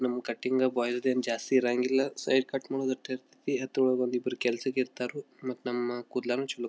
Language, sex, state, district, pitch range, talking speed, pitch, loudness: Kannada, male, Karnataka, Belgaum, 125-130 Hz, 170 wpm, 125 Hz, -30 LUFS